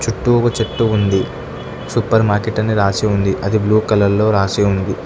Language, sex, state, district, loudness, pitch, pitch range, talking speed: Telugu, male, Telangana, Hyderabad, -16 LUFS, 105 Hz, 100-110 Hz, 165 wpm